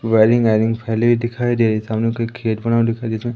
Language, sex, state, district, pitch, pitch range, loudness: Hindi, male, Madhya Pradesh, Umaria, 115 Hz, 110-120 Hz, -18 LUFS